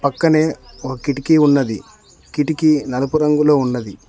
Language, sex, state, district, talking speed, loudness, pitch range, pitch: Telugu, male, Telangana, Mahabubabad, 115 wpm, -16 LUFS, 130-155 Hz, 145 Hz